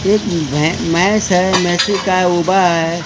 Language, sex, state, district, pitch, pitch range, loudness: Marathi, male, Maharashtra, Mumbai Suburban, 180 Hz, 170-190 Hz, -14 LUFS